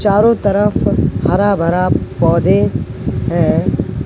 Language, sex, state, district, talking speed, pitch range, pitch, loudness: Hindi, male, Madhya Pradesh, Katni, 90 wpm, 180-205 Hz, 200 Hz, -14 LUFS